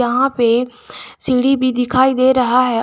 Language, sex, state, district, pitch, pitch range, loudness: Hindi, female, Jharkhand, Garhwa, 255 Hz, 245-260 Hz, -15 LUFS